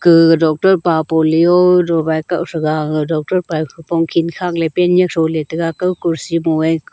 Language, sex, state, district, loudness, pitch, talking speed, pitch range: Wancho, female, Arunachal Pradesh, Longding, -15 LUFS, 165 Hz, 180 wpm, 160-175 Hz